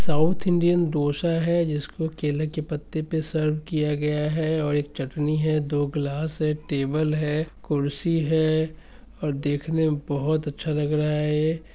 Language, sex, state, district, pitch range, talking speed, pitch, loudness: Hindi, male, Bihar, Sitamarhi, 150-160 Hz, 175 wpm, 155 Hz, -25 LUFS